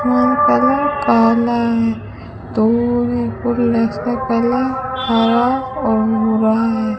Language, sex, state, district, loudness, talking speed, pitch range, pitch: Hindi, female, Rajasthan, Bikaner, -16 LUFS, 70 wpm, 225-260 Hz, 240 Hz